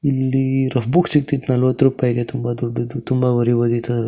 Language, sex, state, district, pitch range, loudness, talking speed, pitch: Kannada, male, Karnataka, Shimoga, 120-135 Hz, -18 LUFS, 130 wpm, 125 Hz